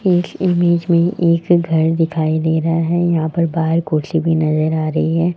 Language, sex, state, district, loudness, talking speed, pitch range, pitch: Hindi, male, Rajasthan, Jaipur, -16 LUFS, 200 wpm, 160-170 Hz, 165 Hz